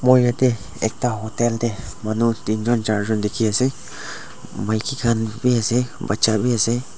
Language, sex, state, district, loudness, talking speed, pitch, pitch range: Nagamese, male, Nagaland, Dimapur, -21 LUFS, 135 wpm, 115 Hz, 110-125 Hz